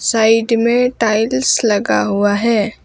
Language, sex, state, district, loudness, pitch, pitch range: Hindi, female, West Bengal, Alipurduar, -14 LUFS, 225 Hz, 210-235 Hz